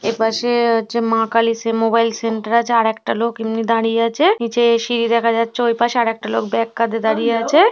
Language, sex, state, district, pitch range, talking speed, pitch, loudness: Bengali, female, West Bengal, Paschim Medinipur, 225-235 Hz, 210 wpm, 230 Hz, -17 LUFS